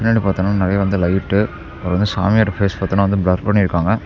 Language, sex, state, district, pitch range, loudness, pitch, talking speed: Tamil, male, Tamil Nadu, Namakkal, 95-100 Hz, -17 LUFS, 95 Hz, 175 wpm